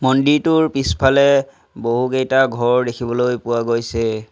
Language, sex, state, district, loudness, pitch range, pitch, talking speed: Assamese, male, Assam, Sonitpur, -17 LUFS, 115-135 Hz, 125 Hz, 95 wpm